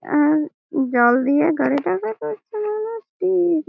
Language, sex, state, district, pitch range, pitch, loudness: Bengali, female, West Bengal, Malda, 255-370 Hz, 300 Hz, -20 LUFS